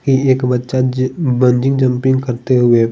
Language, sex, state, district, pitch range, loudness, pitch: Hindi, male, Bihar, Patna, 125-130 Hz, -14 LUFS, 130 Hz